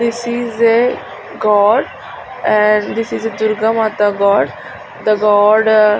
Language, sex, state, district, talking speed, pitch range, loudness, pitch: Telugu, female, Andhra Pradesh, Srikakulam, 140 wpm, 210-225 Hz, -14 LUFS, 215 Hz